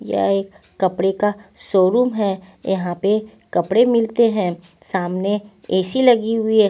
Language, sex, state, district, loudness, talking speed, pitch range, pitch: Hindi, female, Punjab, Pathankot, -19 LUFS, 145 wpm, 185-220 Hz, 200 Hz